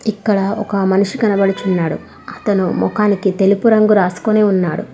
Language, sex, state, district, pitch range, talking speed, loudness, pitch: Telugu, female, Telangana, Hyderabad, 195-215 Hz, 120 wpm, -15 LUFS, 200 Hz